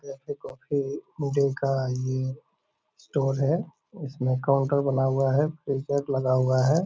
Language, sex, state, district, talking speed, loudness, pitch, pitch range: Hindi, male, Bihar, Purnia, 190 wpm, -26 LUFS, 140 Hz, 130-145 Hz